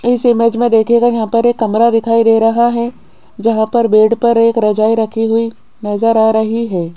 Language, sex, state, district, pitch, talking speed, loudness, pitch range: Hindi, female, Rajasthan, Jaipur, 230 Hz, 205 wpm, -12 LUFS, 220-235 Hz